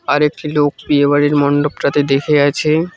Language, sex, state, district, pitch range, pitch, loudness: Bengali, male, West Bengal, Cooch Behar, 145-150 Hz, 145 Hz, -14 LUFS